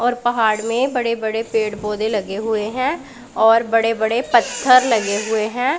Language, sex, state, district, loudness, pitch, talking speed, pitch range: Hindi, female, Punjab, Pathankot, -18 LUFS, 225 Hz, 175 wpm, 220-245 Hz